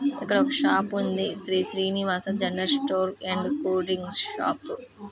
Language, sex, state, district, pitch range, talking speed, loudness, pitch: Telugu, female, Andhra Pradesh, Krishna, 185-275 Hz, 140 wpm, -26 LUFS, 195 Hz